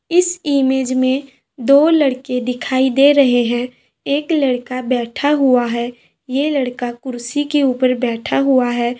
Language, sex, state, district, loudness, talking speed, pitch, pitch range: Hindi, female, Bihar, Madhepura, -16 LUFS, 145 wpm, 260 Hz, 245-280 Hz